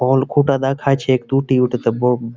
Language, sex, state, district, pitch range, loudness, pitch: Bengali, male, West Bengal, Malda, 125-135 Hz, -17 LUFS, 130 Hz